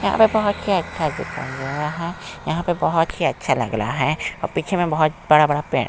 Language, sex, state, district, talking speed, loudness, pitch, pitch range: Hindi, female, Chhattisgarh, Balrampur, 225 wpm, -21 LUFS, 155 Hz, 135-175 Hz